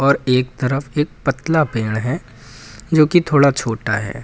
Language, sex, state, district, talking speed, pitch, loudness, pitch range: Hindi, male, Uttar Pradesh, Lucknow, 170 wpm, 135 Hz, -18 LUFS, 120-150 Hz